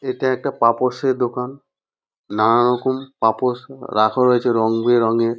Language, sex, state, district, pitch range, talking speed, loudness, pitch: Bengali, male, West Bengal, North 24 Parganas, 115-130 Hz, 110 wpm, -18 LUFS, 125 Hz